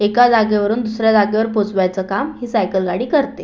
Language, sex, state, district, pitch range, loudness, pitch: Marathi, female, Maharashtra, Aurangabad, 195-240 Hz, -16 LUFS, 215 Hz